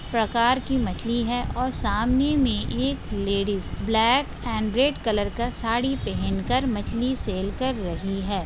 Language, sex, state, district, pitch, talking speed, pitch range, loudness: Hindi, female, Maharashtra, Solapur, 230 Hz, 155 wpm, 200-255 Hz, -24 LUFS